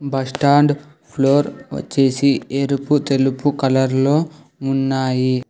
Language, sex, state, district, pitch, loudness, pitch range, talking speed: Telugu, male, Telangana, Hyderabad, 140 Hz, -18 LUFS, 135-145 Hz, 85 wpm